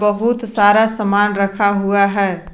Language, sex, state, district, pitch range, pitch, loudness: Hindi, female, Jharkhand, Garhwa, 200-210 Hz, 205 Hz, -15 LUFS